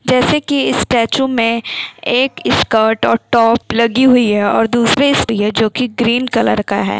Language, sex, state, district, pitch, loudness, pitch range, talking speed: Hindi, female, Bihar, Jamui, 235 Hz, -13 LUFS, 225-255 Hz, 170 wpm